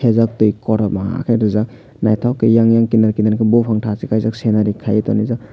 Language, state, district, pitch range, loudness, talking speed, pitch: Kokborok, Tripura, West Tripura, 110-115 Hz, -16 LUFS, 195 wpm, 110 Hz